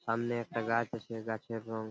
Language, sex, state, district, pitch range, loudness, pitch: Bengali, male, West Bengal, Purulia, 110-115 Hz, -36 LUFS, 115 Hz